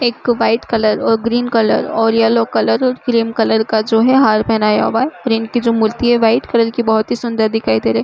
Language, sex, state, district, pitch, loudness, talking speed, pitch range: Hindi, female, Uttar Pradesh, Budaun, 225 Hz, -14 LUFS, 240 wpm, 220-240 Hz